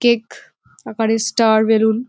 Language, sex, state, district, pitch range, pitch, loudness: Bengali, female, West Bengal, Jalpaiguri, 220-235 Hz, 225 Hz, -16 LUFS